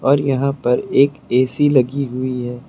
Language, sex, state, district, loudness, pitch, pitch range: Hindi, male, Uttar Pradesh, Lucknow, -17 LUFS, 130 Hz, 125-140 Hz